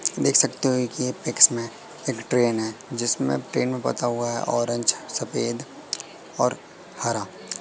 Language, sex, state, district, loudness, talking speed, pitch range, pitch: Hindi, male, Madhya Pradesh, Katni, -23 LUFS, 160 wpm, 115-125 Hz, 120 Hz